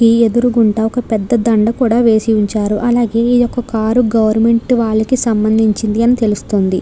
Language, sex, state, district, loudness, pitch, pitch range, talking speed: Telugu, female, Andhra Pradesh, Krishna, -13 LUFS, 225 Hz, 220-240 Hz, 150 wpm